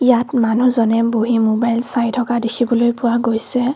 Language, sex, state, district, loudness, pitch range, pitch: Assamese, female, Assam, Kamrup Metropolitan, -16 LUFS, 230-245 Hz, 235 Hz